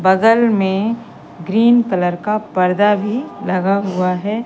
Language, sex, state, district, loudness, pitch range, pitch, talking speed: Hindi, female, Madhya Pradesh, Katni, -16 LUFS, 185-225 Hz, 200 Hz, 135 wpm